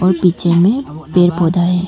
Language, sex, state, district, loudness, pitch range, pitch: Hindi, female, Arunachal Pradesh, Longding, -14 LUFS, 170-180 Hz, 175 Hz